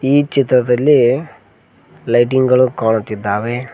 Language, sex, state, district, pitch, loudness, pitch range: Kannada, male, Karnataka, Koppal, 125 Hz, -14 LUFS, 110-130 Hz